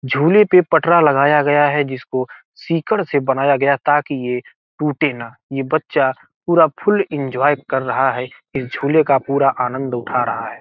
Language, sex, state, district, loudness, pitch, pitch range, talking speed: Hindi, male, Bihar, Gopalganj, -17 LUFS, 140 Hz, 130-155 Hz, 170 wpm